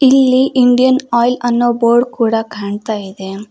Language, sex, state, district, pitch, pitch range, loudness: Kannada, female, Karnataka, Koppal, 240 Hz, 215-255 Hz, -13 LUFS